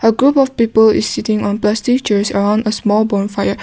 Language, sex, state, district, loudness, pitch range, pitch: English, female, Nagaland, Kohima, -14 LUFS, 205-225 Hz, 215 Hz